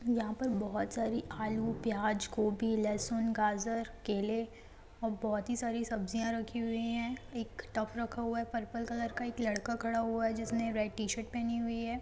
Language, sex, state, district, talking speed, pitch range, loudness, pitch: Hindi, female, Jharkhand, Jamtara, 190 wpm, 220-235 Hz, -35 LUFS, 230 Hz